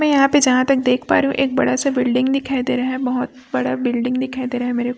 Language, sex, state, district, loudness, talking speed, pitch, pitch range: Hindi, female, Chhattisgarh, Raipur, -18 LUFS, 315 wpm, 255 Hz, 250-270 Hz